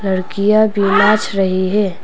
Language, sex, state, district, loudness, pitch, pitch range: Hindi, female, Arunachal Pradesh, Papum Pare, -14 LUFS, 200 Hz, 190-210 Hz